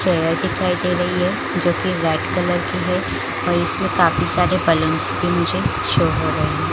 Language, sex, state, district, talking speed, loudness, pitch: Hindi, female, Chhattisgarh, Balrampur, 205 wpm, -19 LUFS, 180 Hz